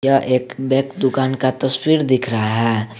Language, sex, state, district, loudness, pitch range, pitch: Hindi, male, Jharkhand, Garhwa, -18 LUFS, 125-135 Hz, 130 Hz